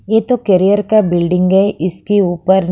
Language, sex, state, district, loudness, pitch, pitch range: Hindi, female, Haryana, Charkhi Dadri, -13 LUFS, 190 Hz, 180-205 Hz